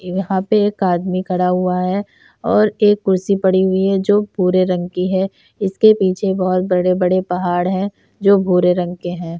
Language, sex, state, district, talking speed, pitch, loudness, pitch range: Hindi, female, Uttar Pradesh, Etah, 190 wpm, 185 Hz, -16 LUFS, 180-195 Hz